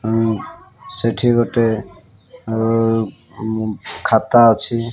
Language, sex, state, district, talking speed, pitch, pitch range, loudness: Odia, male, Odisha, Malkangiri, 85 wpm, 115 Hz, 110-120 Hz, -17 LUFS